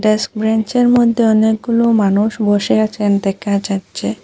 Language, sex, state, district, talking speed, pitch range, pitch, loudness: Bengali, female, Assam, Hailakandi, 125 wpm, 200-220 Hz, 215 Hz, -15 LUFS